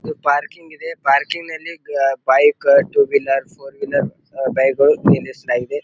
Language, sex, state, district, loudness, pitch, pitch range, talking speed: Kannada, male, Karnataka, Bijapur, -17 LUFS, 145 Hz, 135-170 Hz, 155 wpm